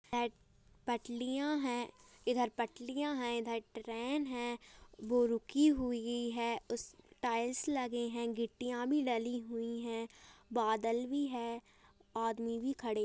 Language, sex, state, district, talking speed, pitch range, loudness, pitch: Hindi, male, Uttarakhand, Tehri Garhwal, 130 wpm, 230-245 Hz, -37 LUFS, 240 Hz